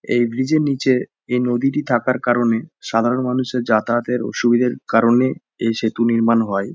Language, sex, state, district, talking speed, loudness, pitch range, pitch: Bengali, male, West Bengal, Jhargram, 150 wpm, -18 LUFS, 115-125 Hz, 120 Hz